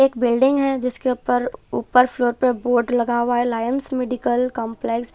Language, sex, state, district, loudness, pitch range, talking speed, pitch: Hindi, female, Punjab, Kapurthala, -20 LUFS, 240-255 Hz, 185 wpm, 245 Hz